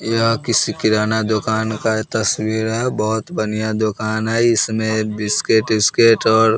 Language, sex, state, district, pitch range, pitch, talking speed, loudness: Hindi, male, Bihar, West Champaran, 110-115 Hz, 110 Hz, 145 wpm, -17 LUFS